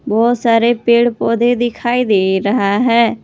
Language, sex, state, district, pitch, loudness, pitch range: Hindi, female, Jharkhand, Palamu, 235 Hz, -14 LUFS, 220-240 Hz